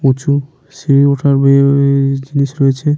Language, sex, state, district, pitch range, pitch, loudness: Bengali, male, West Bengal, Paschim Medinipur, 135-140 Hz, 140 Hz, -12 LUFS